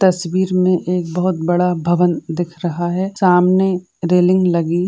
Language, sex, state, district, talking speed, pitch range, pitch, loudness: Hindi, female, Uttar Pradesh, Etah, 145 wpm, 175-185 Hz, 180 Hz, -16 LUFS